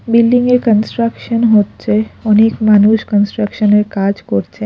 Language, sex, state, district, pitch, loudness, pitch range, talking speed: Bengali, female, Odisha, Khordha, 215 Hz, -12 LUFS, 205-230 Hz, 105 wpm